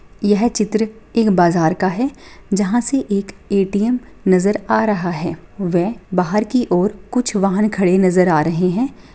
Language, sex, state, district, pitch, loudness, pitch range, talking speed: Hindi, female, Bihar, Samastipur, 200 Hz, -17 LUFS, 185-220 Hz, 155 wpm